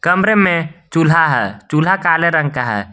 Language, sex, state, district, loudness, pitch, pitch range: Hindi, male, Jharkhand, Garhwa, -14 LUFS, 165 Hz, 145-170 Hz